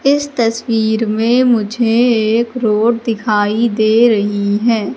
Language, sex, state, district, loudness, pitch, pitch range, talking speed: Hindi, female, Madhya Pradesh, Katni, -14 LUFS, 225 Hz, 215-235 Hz, 120 wpm